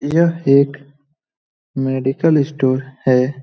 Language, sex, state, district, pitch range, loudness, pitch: Hindi, male, Bihar, Lakhisarai, 135-150 Hz, -16 LUFS, 140 Hz